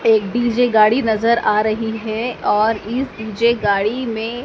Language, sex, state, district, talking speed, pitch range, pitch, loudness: Hindi, female, Madhya Pradesh, Dhar, 160 wpm, 215-235 Hz, 225 Hz, -17 LUFS